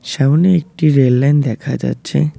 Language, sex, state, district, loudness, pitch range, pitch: Bengali, male, West Bengal, Cooch Behar, -14 LUFS, 125-155 Hz, 140 Hz